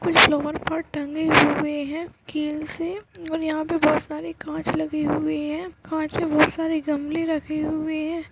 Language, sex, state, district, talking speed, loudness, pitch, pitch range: Hindi, female, Uttarakhand, Uttarkashi, 175 wpm, -23 LUFS, 310 Hz, 300-325 Hz